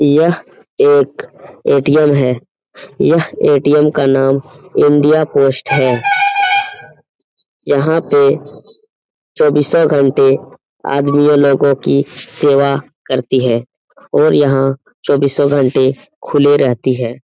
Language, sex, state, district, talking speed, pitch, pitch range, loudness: Hindi, male, Bihar, Jamui, 110 wpm, 140 Hz, 135-150 Hz, -13 LUFS